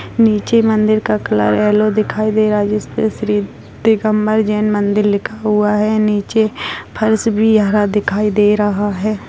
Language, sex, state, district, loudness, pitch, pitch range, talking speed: Hindi, female, Bihar, Begusarai, -15 LUFS, 210 Hz, 205-215 Hz, 170 wpm